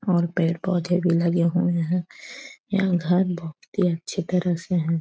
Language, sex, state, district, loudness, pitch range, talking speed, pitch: Hindi, female, Uttar Pradesh, Etah, -23 LUFS, 170-180 Hz, 170 wpm, 175 Hz